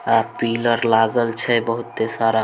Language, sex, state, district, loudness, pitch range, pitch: Maithili, male, Bihar, Samastipur, -19 LUFS, 115-120 Hz, 115 Hz